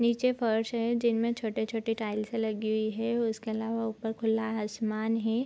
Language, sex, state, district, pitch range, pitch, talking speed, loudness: Hindi, female, Bihar, Araria, 220-230 Hz, 225 Hz, 165 wpm, -30 LUFS